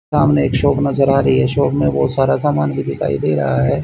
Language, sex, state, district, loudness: Hindi, male, Haryana, Charkhi Dadri, -16 LUFS